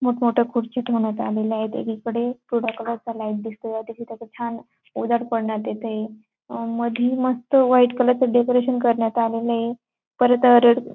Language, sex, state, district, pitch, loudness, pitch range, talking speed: Marathi, female, Maharashtra, Dhule, 235 Hz, -21 LUFS, 225-245 Hz, 175 wpm